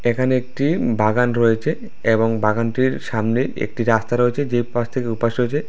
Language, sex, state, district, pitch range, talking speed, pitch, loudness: Bengali, male, Tripura, West Tripura, 115-130 Hz, 160 wpm, 120 Hz, -19 LUFS